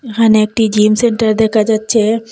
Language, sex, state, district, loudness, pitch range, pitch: Bengali, female, Assam, Hailakandi, -12 LUFS, 215-225 Hz, 220 Hz